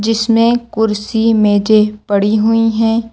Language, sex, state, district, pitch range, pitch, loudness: Hindi, female, Uttar Pradesh, Lucknow, 210-225 Hz, 220 Hz, -13 LUFS